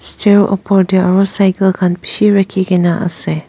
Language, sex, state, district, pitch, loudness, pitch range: Nagamese, female, Nagaland, Dimapur, 190 Hz, -12 LUFS, 180-195 Hz